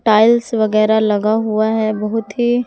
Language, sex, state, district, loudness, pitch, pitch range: Hindi, female, Jharkhand, Palamu, -15 LUFS, 220 Hz, 215-225 Hz